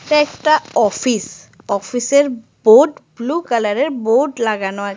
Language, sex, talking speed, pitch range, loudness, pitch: Bengali, female, 120 wpm, 215-290 Hz, -16 LUFS, 245 Hz